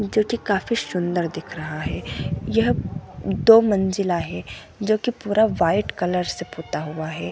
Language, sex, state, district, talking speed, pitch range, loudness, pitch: Hindi, female, Chhattisgarh, Bilaspur, 150 wpm, 175-215 Hz, -22 LUFS, 200 Hz